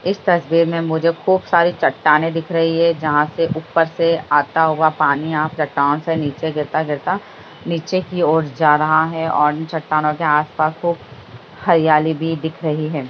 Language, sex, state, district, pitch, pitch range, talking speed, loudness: Hindi, female, Bihar, Lakhisarai, 160 Hz, 150-165 Hz, 180 wpm, -17 LUFS